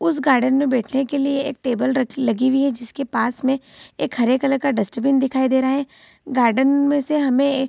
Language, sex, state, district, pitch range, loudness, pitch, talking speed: Hindi, female, Bihar, Saharsa, 255-275 Hz, -19 LUFS, 265 Hz, 235 wpm